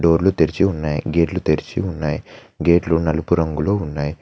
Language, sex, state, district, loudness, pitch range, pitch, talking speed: Telugu, male, Telangana, Mahabubabad, -19 LUFS, 80-85 Hz, 80 Hz, 140 wpm